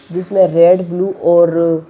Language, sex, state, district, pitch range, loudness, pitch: Hindi, female, Maharashtra, Sindhudurg, 170-185 Hz, -12 LUFS, 175 Hz